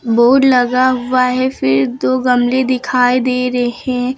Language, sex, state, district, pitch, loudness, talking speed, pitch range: Hindi, female, Uttar Pradesh, Lucknow, 250 Hz, -14 LUFS, 160 wpm, 245-255 Hz